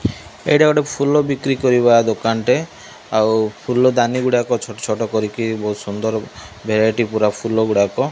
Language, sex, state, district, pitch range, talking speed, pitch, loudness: Odia, male, Odisha, Malkangiri, 110-125 Hz, 135 wpm, 115 Hz, -17 LUFS